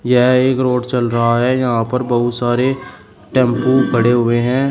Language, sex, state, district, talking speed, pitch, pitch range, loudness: Hindi, male, Uttar Pradesh, Shamli, 180 wpm, 125 Hz, 120-130 Hz, -15 LUFS